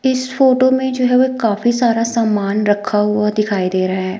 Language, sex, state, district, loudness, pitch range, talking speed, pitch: Hindi, female, Himachal Pradesh, Shimla, -15 LUFS, 205-255 Hz, 230 wpm, 225 Hz